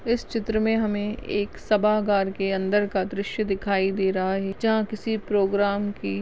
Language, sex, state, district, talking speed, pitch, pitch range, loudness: Hindi, female, Maharashtra, Chandrapur, 155 wpm, 205 Hz, 195-215 Hz, -24 LUFS